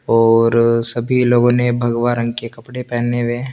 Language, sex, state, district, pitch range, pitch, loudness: Hindi, male, Chandigarh, Chandigarh, 115-120 Hz, 120 Hz, -15 LUFS